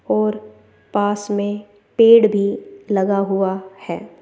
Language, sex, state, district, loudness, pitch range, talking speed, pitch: Hindi, female, Rajasthan, Jaipur, -17 LUFS, 190-205 Hz, 115 wpm, 200 Hz